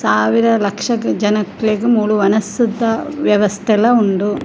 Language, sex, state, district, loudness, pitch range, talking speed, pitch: Tulu, female, Karnataka, Dakshina Kannada, -15 LUFS, 205-230 Hz, 95 wpm, 215 Hz